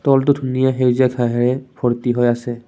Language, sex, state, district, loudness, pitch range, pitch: Assamese, male, Assam, Kamrup Metropolitan, -17 LUFS, 120-130 Hz, 125 Hz